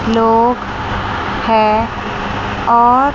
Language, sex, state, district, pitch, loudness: Hindi, female, Chandigarh, Chandigarh, 225 Hz, -14 LUFS